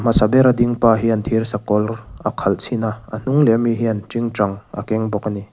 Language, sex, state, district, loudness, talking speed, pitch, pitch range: Mizo, male, Mizoram, Aizawl, -18 LUFS, 240 wpm, 110 Hz, 105-115 Hz